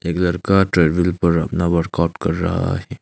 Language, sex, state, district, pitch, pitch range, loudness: Hindi, male, Arunachal Pradesh, Longding, 85 Hz, 85-90 Hz, -18 LUFS